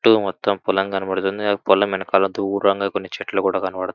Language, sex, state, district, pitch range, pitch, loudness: Telugu, male, Andhra Pradesh, Anantapur, 95-100 Hz, 95 Hz, -20 LUFS